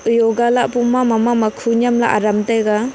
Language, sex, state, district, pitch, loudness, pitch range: Wancho, female, Arunachal Pradesh, Longding, 230 Hz, -16 LUFS, 220-240 Hz